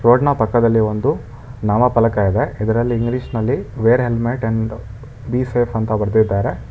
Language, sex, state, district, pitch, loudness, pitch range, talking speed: Kannada, male, Karnataka, Bangalore, 115 Hz, -17 LUFS, 110-120 Hz, 125 wpm